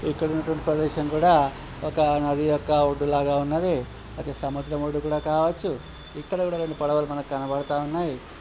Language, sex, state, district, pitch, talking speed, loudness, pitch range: Telugu, male, Andhra Pradesh, Srikakulam, 150 Hz, 150 wpm, -25 LUFS, 145-155 Hz